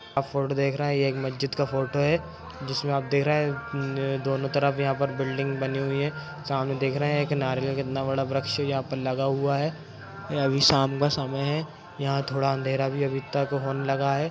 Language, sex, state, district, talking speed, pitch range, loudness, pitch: Hindi, male, Bihar, Madhepura, 225 wpm, 135-140 Hz, -26 LUFS, 140 Hz